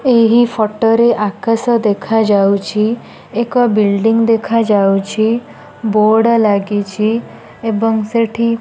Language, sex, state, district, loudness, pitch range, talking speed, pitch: Odia, female, Odisha, Nuapada, -14 LUFS, 210-230 Hz, 90 wpm, 225 Hz